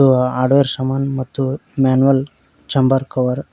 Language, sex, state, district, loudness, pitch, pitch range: Kannada, male, Karnataka, Koppal, -17 LUFS, 135 Hz, 130-135 Hz